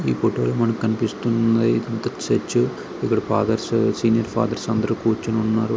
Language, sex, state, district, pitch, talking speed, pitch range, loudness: Telugu, male, Andhra Pradesh, Srikakulam, 115 Hz, 125 wpm, 110-115 Hz, -21 LUFS